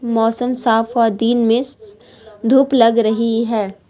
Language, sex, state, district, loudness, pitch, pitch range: Hindi, female, Uttar Pradesh, Lalitpur, -16 LUFS, 230 Hz, 225-245 Hz